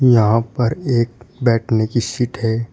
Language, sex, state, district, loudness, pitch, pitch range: Hindi, male, Uttar Pradesh, Shamli, -18 LUFS, 120 Hz, 115-125 Hz